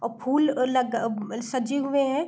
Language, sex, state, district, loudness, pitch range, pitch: Hindi, female, Uttar Pradesh, Deoria, -25 LUFS, 235-280 Hz, 255 Hz